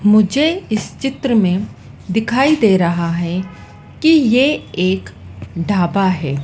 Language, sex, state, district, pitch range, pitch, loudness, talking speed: Hindi, female, Madhya Pradesh, Dhar, 175-250 Hz, 200 Hz, -16 LUFS, 120 wpm